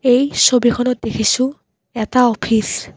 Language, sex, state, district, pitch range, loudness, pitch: Assamese, female, Assam, Kamrup Metropolitan, 220-255 Hz, -16 LUFS, 245 Hz